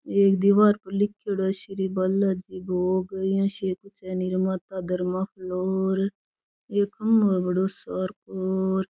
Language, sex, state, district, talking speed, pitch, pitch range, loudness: Rajasthani, female, Rajasthan, Churu, 150 wpm, 190 Hz, 185-200 Hz, -25 LUFS